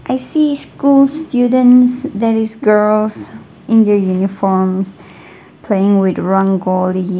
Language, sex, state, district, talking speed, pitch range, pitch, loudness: English, female, Nagaland, Dimapur, 110 wpm, 190-250 Hz, 210 Hz, -13 LUFS